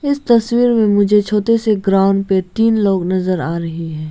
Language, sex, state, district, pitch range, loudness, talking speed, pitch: Hindi, female, Arunachal Pradesh, Lower Dibang Valley, 185-225 Hz, -15 LUFS, 205 wpm, 205 Hz